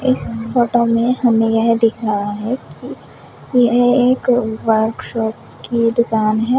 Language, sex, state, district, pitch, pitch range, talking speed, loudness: Hindi, female, Uttar Pradesh, Shamli, 230 Hz, 225-245 Hz, 125 wpm, -16 LUFS